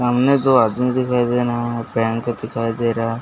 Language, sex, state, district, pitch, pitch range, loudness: Hindi, male, Chhattisgarh, Bastar, 120 Hz, 115-125 Hz, -19 LUFS